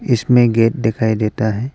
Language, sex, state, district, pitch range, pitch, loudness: Hindi, male, Arunachal Pradesh, Papum Pare, 110-125 Hz, 115 Hz, -15 LUFS